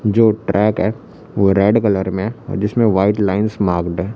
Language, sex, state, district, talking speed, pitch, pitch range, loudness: Hindi, male, Chhattisgarh, Raipur, 200 wpm, 105 Hz, 95-110 Hz, -16 LUFS